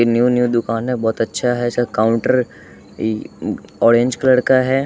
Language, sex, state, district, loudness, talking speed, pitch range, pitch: Hindi, male, Bihar, West Champaran, -17 LUFS, 195 wpm, 115-125 Hz, 120 Hz